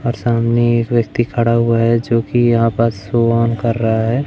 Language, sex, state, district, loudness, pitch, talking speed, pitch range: Hindi, male, Madhya Pradesh, Umaria, -15 LUFS, 115 Hz, 225 wpm, 115-120 Hz